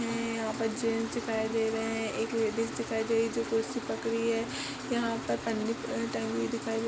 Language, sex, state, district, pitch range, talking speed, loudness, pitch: Hindi, female, Uttar Pradesh, Budaun, 225-230 Hz, 220 wpm, -32 LUFS, 225 Hz